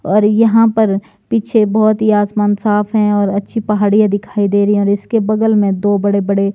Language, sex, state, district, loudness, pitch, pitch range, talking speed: Hindi, male, Himachal Pradesh, Shimla, -13 LUFS, 210 Hz, 200-215 Hz, 200 wpm